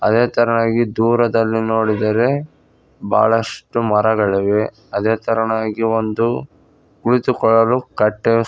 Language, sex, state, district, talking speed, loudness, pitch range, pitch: Kannada, male, Karnataka, Koppal, 80 wpm, -17 LUFS, 110-115 Hz, 115 Hz